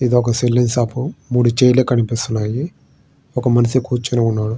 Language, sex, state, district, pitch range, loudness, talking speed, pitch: Telugu, male, Andhra Pradesh, Srikakulam, 115-125 Hz, -17 LUFS, 130 wpm, 120 Hz